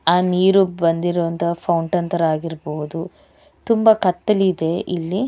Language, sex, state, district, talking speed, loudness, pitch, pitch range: Kannada, female, Karnataka, Bellary, 100 wpm, -19 LUFS, 175 Hz, 165-190 Hz